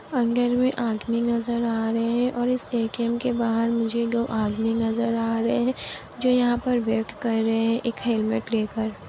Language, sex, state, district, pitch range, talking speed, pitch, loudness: Hindi, female, Bihar, Kishanganj, 225-240 Hz, 190 wpm, 230 Hz, -24 LUFS